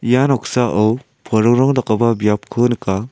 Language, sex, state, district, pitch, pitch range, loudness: Garo, male, Meghalaya, South Garo Hills, 120 Hz, 110-125 Hz, -16 LUFS